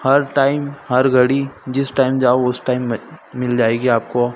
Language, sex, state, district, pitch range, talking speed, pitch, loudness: Hindi, male, Madhya Pradesh, Dhar, 125-135 Hz, 180 wpm, 125 Hz, -17 LUFS